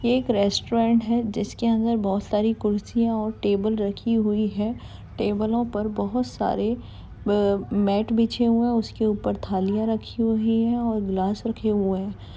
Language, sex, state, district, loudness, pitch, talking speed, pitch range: Hindi, female, Uttar Pradesh, Jalaun, -24 LUFS, 220 Hz, 175 wpm, 205-230 Hz